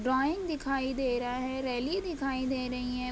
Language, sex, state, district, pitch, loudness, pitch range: Hindi, female, Uttar Pradesh, Budaun, 260 Hz, -32 LUFS, 250-275 Hz